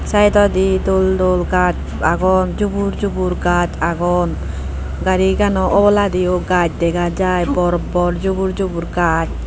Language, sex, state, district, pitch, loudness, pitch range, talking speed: Chakma, female, Tripura, Unakoti, 185 Hz, -16 LUFS, 175-190 Hz, 120 wpm